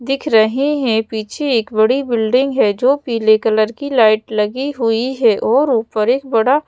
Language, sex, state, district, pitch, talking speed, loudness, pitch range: Hindi, female, Madhya Pradesh, Bhopal, 230 Hz, 180 wpm, -15 LUFS, 220-275 Hz